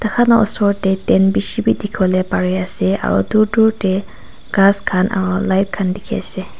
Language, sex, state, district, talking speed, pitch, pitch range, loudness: Nagamese, female, Nagaland, Kohima, 200 wpm, 195 Hz, 185-210 Hz, -16 LUFS